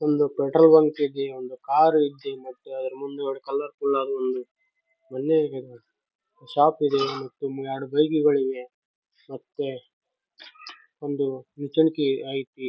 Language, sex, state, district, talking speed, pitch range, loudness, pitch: Kannada, male, Karnataka, Raichur, 115 wpm, 130-150 Hz, -24 LUFS, 140 Hz